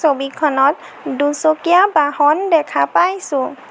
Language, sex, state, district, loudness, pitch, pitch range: Assamese, female, Assam, Sonitpur, -15 LUFS, 300 Hz, 275-325 Hz